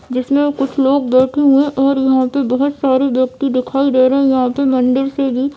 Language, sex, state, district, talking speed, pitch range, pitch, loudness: Hindi, female, Bihar, Vaishali, 235 wpm, 255-275 Hz, 270 Hz, -14 LUFS